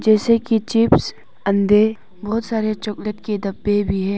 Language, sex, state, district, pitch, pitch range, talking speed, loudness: Hindi, female, Arunachal Pradesh, Papum Pare, 210 Hz, 205-220 Hz, 155 wpm, -19 LUFS